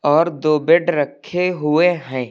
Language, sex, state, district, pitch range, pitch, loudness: Hindi, male, Uttar Pradesh, Lucknow, 145-175 Hz, 155 Hz, -17 LUFS